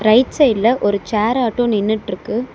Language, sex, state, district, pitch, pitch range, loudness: Tamil, female, Tamil Nadu, Chennai, 225 Hz, 210-245 Hz, -16 LUFS